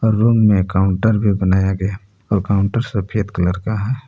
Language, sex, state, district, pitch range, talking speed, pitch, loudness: Hindi, male, Jharkhand, Palamu, 95-110 Hz, 175 wpm, 100 Hz, -17 LUFS